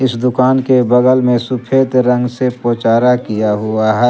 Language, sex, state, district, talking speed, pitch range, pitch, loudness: Hindi, male, Jharkhand, Garhwa, 175 wpm, 115-125 Hz, 125 Hz, -13 LUFS